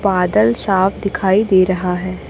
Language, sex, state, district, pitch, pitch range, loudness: Hindi, female, Chhattisgarh, Raipur, 185 Hz, 180-195 Hz, -15 LUFS